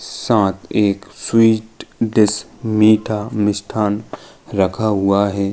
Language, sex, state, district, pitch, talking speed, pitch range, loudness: Hindi, male, Uttar Pradesh, Jalaun, 105 Hz, 100 wpm, 100-110 Hz, -17 LUFS